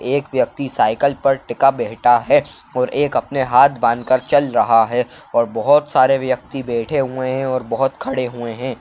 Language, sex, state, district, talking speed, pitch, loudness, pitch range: Kumaoni, male, Uttarakhand, Uttarkashi, 185 wpm, 130 Hz, -17 LUFS, 120-135 Hz